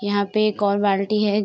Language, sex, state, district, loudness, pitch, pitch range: Hindi, female, Bihar, Saharsa, -20 LUFS, 205 Hz, 200-210 Hz